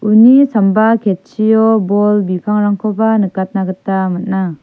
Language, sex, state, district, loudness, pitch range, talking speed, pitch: Garo, female, Meghalaya, South Garo Hills, -13 LUFS, 190-220 Hz, 105 wpm, 210 Hz